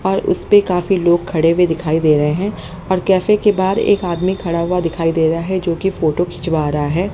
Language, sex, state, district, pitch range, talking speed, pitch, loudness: Hindi, female, Haryana, Jhajjar, 165-190 Hz, 235 wpm, 175 Hz, -16 LUFS